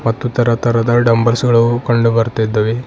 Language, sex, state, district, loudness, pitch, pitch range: Kannada, male, Karnataka, Bidar, -14 LUFS, 115 Hz, 115-120 Hz